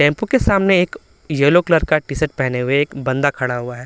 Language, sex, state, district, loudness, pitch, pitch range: Hindi, male, Bihar, Patna, -17 LUFS, 145 Hz, 130-165 Hz